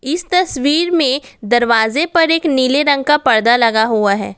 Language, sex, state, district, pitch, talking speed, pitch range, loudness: Hindi, female, Assam, Kamrup Metropolitan, 275 Hz, 180 wpm, 230-320 Hz, -14 LUFS